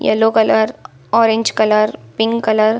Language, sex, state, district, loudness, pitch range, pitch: Hindi, female, Bihar, Saran, -15 LUFS, 215-225 Hz, 220 Hz